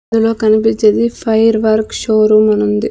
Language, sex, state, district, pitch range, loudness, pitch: Telugu, female, Andhra Pradesh, Sri Satya Sai, 215-225 Hz, -12 LUFS, 220 Hz